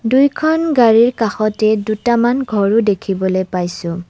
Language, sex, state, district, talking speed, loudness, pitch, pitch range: Assamese, female, Assam, Kamrup Metropolitan, 100 wpm, -15 LUFS, 215 Hz, 195-240 Hz